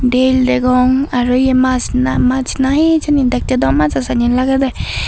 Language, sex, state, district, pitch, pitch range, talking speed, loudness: Chakma, female, Tripura, Dhalai, 255 Hz, 240-265 Hz, 165 wpm, -14 LUFS